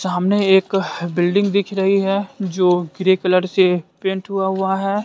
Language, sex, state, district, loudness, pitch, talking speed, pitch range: Hindi, female, Bihar, West Champaran, -18 LUFS, 190 Hz, 165 wpm, 185-195 Hz